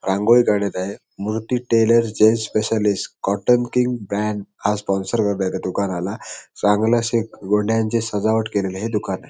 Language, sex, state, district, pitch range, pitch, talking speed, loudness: Marathi, male, Maharashtra, Sindhudurg, 100-115 Hz, 105 Hz, 150 wpm, -20 LUFS